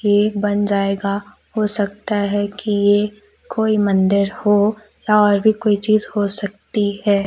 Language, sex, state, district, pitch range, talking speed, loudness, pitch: Hindi, male, Madhya Pradesh, Umaria, 200-210 Hz, 155 wpm, -18 LUFS, 205 Hz